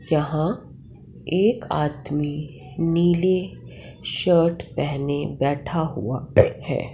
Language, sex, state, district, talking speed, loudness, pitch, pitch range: Hindi, female, Bihar, Madhepura, 80 wpm, -22 LUFS, 160 Hz, 145-175 Hz